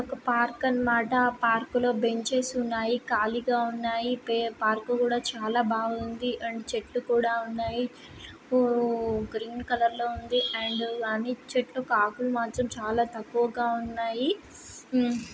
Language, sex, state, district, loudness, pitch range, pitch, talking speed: Telugu, female, Andhra Pradesh, Srikakulam, -28 LUFS, 230-245 Hz, 235 Hz, 130 wpm